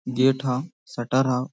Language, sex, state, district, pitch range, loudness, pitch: Hindi, male, Jharkhand, Sahebganj, 125-135 Hz, -24 LUFS, 130 Hz